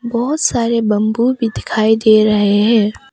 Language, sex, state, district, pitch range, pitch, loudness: Hindi, female, Arunachal Pradesh, Papum Pare, 215-235 Hz, 225 Hz, -14 LUFS